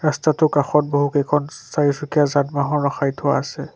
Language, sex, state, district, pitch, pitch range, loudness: Assamese, male, Assam, Sonitpur, 145 Hz, 140-150 Hz, -19 LUFS